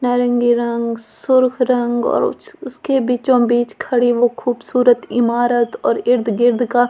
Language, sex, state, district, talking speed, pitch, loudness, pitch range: Hindi, female, Delhi, New Delhi, 130 wpm, 245 Hz, -16 LUFS, 240-245 Hz